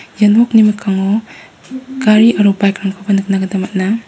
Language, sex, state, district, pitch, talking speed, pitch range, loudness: Garo, female, Meghalaya, West Garo Hills, 205 Hz, 130 wpm, 195-225 Hz, -13 LUFS